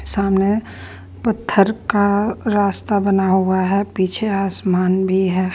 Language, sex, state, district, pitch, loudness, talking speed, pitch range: Hindi, female, Bihar, Patna, 195 Hz, -18 LUFS, 120 wpm, 185-205 Hz